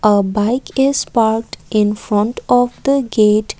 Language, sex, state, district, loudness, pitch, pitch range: English, female, Assam, Kamrup Metropolitan, -16 LUFS, 220 Hz, 210-245 Hz